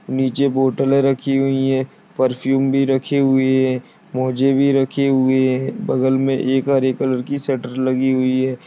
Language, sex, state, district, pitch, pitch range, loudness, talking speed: Hindi, male, Uttar Pradesh, Deoria, 130 Hz, 130-135 Hz, -18 LUFS, 175 wpm